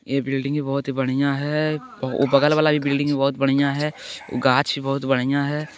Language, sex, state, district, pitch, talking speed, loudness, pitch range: Hindi, male, Bihar, Lakhisarai, 140 Hz, 195 wpm, -21 LUFS, 135-145 Hz